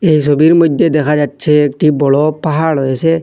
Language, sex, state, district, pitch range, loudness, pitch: Bengali, male, Assam, Hailakandi, 145-160 Hz, -12 LUFS, 150 Hz